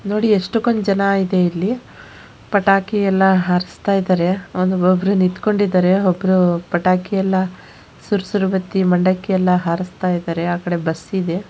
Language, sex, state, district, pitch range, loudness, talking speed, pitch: Kannada, female, Karnataka, Shimoga, 180-195 Hz, -17 LUFS, 120 wpm, 185 Hz